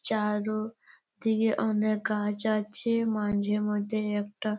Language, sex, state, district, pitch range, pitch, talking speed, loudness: Bengali, female, West Bengal, Jalpaiguri, 210-220 Hz, 215 Hz, 105 wpm, -28 LUFS